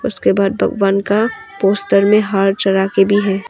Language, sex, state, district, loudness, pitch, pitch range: Hindi, female, Arunachal Pradesh, Longding, -15 LUFS, 195 Hz, 195-210 Hz